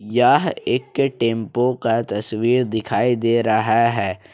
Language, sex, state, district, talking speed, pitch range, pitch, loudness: Hindi, male, Jharkhand, Ranchi, 125 wpm, 110-120 Hz, 115 Hz, -19 LUFS